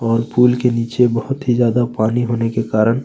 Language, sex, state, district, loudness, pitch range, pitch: Hindi, male, Chhattisgarh, Kabirdham, -16 LUFS, 115-125 Hz, 120 Hz